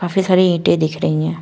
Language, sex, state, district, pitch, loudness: Hindi, female, Uttar Pradesh, Shamli, 170 Hz, -16 LUFS